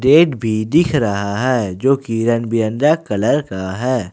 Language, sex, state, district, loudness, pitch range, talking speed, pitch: Hindi, male, Jharkhand, Ranchi, -17 LUFS, 110-135 Hz, 175 wpm, 120 Hz